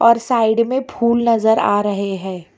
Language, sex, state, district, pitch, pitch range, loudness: Hindi, female, Karnataka, Bangalore, 225 Hz, 205-235 Hz, -17 LUFS